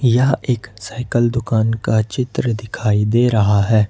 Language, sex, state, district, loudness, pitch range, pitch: Hindi, male, Jharkhand, Ranchi, -17 LUFS, 110-120 Hz, 115 Hz